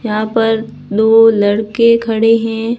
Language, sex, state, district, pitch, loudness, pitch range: Hindi, female, Rajasthan, Barmer, 225 Hz, -12 LUFS, 220-230 Hz